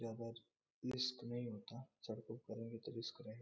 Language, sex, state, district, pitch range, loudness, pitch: Hindi, male, Bihar, Gopalganj, 115-120 Hz, -48 LUFS, 115 Hz